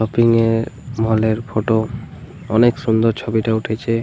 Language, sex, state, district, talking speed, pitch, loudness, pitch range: Bengali, male, Jharkhand, Jamtara, 150 wpm, 115 Hz, -18 LUFS, 110-120 Hz